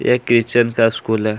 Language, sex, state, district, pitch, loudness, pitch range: Hindi, male, Chhattisgarh, Kabirdham, 115 Hz, -16 LUFS, 110-120 Hz